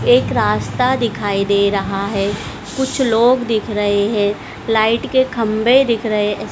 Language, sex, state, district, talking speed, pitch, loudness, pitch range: Hindi, female, Madhya Pradesh, Dhar, 145 wpm, 210 Hz, -16 LUFS, 200-235 Hz